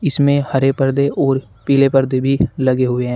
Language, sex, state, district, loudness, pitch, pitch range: Hindi, male, Uttar Pradesh, Shamli, -16 LUFS, 135 Hz, 130-140 Hz